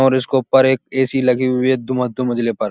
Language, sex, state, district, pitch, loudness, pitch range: Hindi, male, Uttar Pradesh, Muzaffarnagar, 130 Hz, -17 LUFS, 125-130 Hz